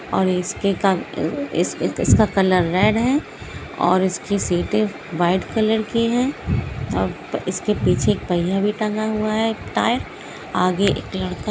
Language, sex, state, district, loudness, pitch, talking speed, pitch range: Hindi, female, Bihar, Jamui, -20 LUFS, 200 Hz, 140 wpm, 185-215 Hz